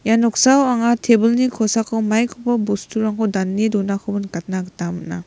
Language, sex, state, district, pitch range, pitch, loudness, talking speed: Garo, female, Meghalaya, West Garo Hills, 200-235 Hz, 220 Hz, -18 LUFS, 135 wpm